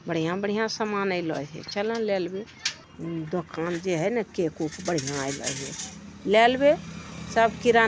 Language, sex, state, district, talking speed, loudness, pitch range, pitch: Magahi, female, Bihar, Jamui, 165 wpm, -26 LUFS, 165-210 Hz, 185 Hz